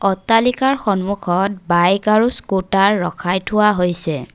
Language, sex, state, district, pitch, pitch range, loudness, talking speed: Assamese, female, Assam, Kamrup Metropolitan, 195 Hz, 180-210 Hz, -16 LUFS, 110 wpm